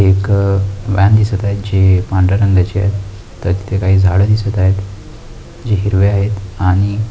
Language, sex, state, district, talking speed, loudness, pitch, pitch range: Marathi, male, Maharashtra, Aurangabad, 160 wpm, -14 LUFS, 100 Hz, 95-100 Hz